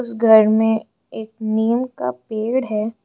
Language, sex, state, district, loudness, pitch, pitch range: Hindi, female, Arunachal Pradesh, Lower Dibang Valley, -18 LUFS, 220 Hz, 215-230 Hz